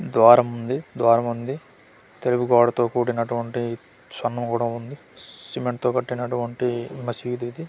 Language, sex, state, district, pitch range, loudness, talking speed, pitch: Telugu, male, Andhra Pradesh, Manyam, 120-125 Hz, -22 LUFS, 125 wpm, 120 Hz